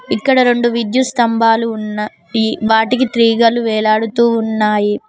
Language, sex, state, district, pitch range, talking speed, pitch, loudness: Telugu, female, Telangana, Mahabubabad, 215-235 Hz, 105 wpm, 225 Hz, -14 LUFS